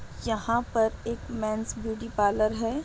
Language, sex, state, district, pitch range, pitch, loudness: Hindi, female, Bihar, Madhepura, 215-230 Hz, 225 Hz, -28 LUFS